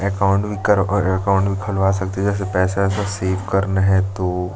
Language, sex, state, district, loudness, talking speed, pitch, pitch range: Hindi, male, Chhattisgarh, Jashpur, -19 LUFS, 225 wpm, 95 Hz, 95-100 Hz